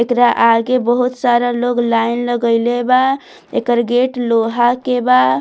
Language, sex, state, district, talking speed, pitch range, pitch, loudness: Bhojpuri, female, Bihar, Muzaffarpur, 145 wpm, 235-250 Hz, 240 Hz, -15 LUFS